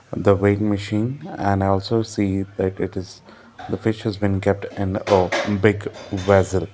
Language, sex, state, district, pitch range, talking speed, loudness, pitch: English, male, Karnataka, Bangalore, 95-110 Hz, 170 wpm, -21 LUFS, 100 Hz